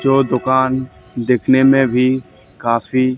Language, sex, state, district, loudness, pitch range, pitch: Hindi, male, Haryana, Charkhi Dadri, -15 LUFS, 120-130 Hz, 130 Hz